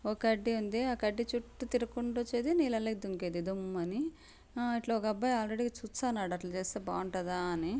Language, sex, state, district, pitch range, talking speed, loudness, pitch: Telugu, female, Andhra Pradesh, Anantapur, 190-240 Hz, 170 wpm, -35 LUFS, 225 Hz